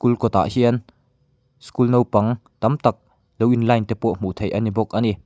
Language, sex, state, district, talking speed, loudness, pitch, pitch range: Mizo, male, Mizoram, Aizawl, 215 wpm, -20 LUFS, 115 Hz, 110-125 Hz